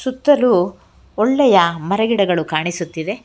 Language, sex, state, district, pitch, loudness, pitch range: Kannada, female, Karnataka, Bangalore, 200 Hz, -16 LUFS, 170-245 Hz